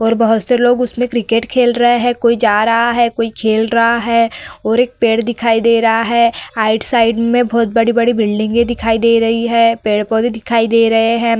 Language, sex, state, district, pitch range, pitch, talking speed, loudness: Hindi, female, Uttar Pradesh, Varanasi, 225-235 Hz, 230 Hz, 200 wpm, -13 LUFS